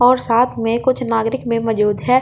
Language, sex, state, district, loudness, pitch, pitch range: Hindi, female, Delhi, New Delhi, -17 LUFS, 235 Hz, 225-250 Hz